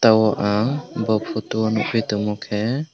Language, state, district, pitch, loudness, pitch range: Kokborok, Tripura, West Tripura, 110 Hz, -21 LUFS, 105-115 Hz